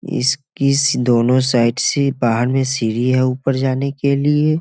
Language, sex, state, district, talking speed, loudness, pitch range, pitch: Hindi, male, Bihar, Muzaffarpur, 170 wpm, -16 LUFS, 125-140 Hz, 130 Hz